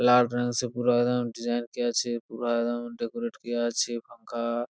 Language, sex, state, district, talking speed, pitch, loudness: Bengali, male, West Bengal, Purulia, 190 wpm, 120 Hz, -28 LUFS